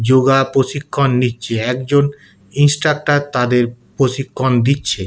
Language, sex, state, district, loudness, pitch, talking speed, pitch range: Bengali, male, West Bengal, Kolkata, -16 LUFS, 130 Hz, 95 wpm, 125-140 Hz